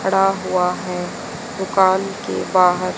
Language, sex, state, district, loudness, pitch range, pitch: Hindi, female, Haryana, Charkhi Dadri, -19 LUFS, 180-195 Hz, 190 Hz